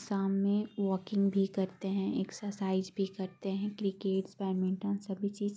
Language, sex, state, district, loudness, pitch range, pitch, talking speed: Hindi, female, Bihar, Gaya, -34 LUFS, 190-200 Hz, 195 Hz, 140 wpm